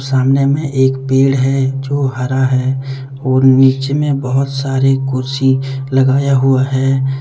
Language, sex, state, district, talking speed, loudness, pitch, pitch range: Hindi, male, Jharkhand, Deoghar, 140 wpm, -14 LUFS, 135 Hz, 130-135 Hz